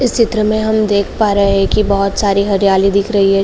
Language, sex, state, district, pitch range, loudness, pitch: Hindi, female, Uttar Pradesh, Jalaun, 195-215 Hz, -13 LUFS, 200 Hz